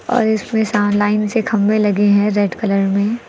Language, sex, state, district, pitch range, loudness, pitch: Hindi, female, Uttar Pradesh, Lucknow, 205-220 Hz, -16 LUFS, 210 Hz